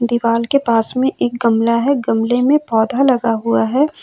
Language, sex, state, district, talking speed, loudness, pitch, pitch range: Hindi, female, Jharkhand, Ranchi, 195 wpm, -15 LUFS, 235 Hz, 230-265 Hz